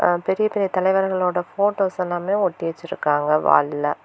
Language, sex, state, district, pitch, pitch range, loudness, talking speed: Tamil, female, Tamil Nadu, Kanyakumari, 180 Hz, 165-195 Hz, -21 LUFS, 135 wpm